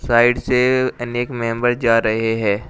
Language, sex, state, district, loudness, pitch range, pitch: Hindi, male, Uttar Pradesh, Shamli, -18 LUFS, 115-120 Hz, 120 Hz